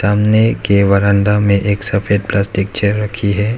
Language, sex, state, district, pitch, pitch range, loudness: Hindi, male, Arunachal Pradesh, Lower Dibang Valley, 100 Hz, 100-105 Hz, -14 LUFS